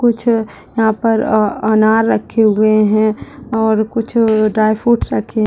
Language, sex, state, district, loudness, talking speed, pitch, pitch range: Hindi, female, Bihar, Purnia, -14 LUFS, 140 wpm, 220 Hz, 215-230 Hz